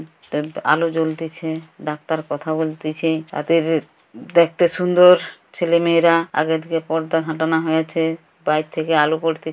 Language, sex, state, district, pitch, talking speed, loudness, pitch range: Bengali, female, West Bengal, Jhargram, 160 Hz, 115 wpm, -19 LUFS, 155-165 Hz